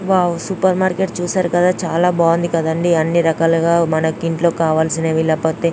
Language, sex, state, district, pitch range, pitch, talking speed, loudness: Telugu, female, Andhra Pradesh, Anantapur, 160-175 Hz, 170 Hz, 145 wpm, -16 LUFS